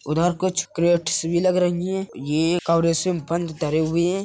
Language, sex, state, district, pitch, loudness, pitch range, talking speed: Hindi, male, Uttar Pradesh, Hamirpur, 170 Hz, -22 LUFS, 165-180 Hz, 255 wpm